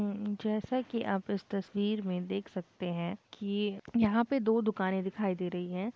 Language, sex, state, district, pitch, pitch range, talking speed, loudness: Hindi, female, Bihar, Purnia, 200 Hz, 190-215 Hz, 180 wpm, -33 LUFS